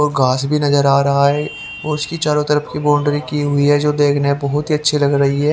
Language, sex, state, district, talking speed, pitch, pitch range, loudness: Hindi, male, Haryana, Jhajjar, 270 wpm, 145 Hz, 140-150 Hz, -16 LUFS